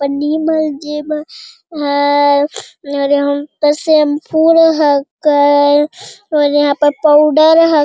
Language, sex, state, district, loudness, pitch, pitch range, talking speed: Hindi, male, Bihar, Jamui, -12 LUFS, 295 Hz, 285-315 Hz, 120 wpm